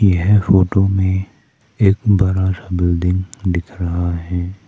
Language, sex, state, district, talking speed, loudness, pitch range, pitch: Hindi, male, Arunachal Pradesh, Papum Pare, 130 wpm, -17 LUFS, 90-100 Hz, 95 Hz